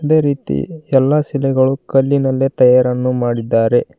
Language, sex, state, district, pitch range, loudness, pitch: Kannada, male, Karnataka, Koppal, 125-140 Hz, -15 LUFS, 135 Hz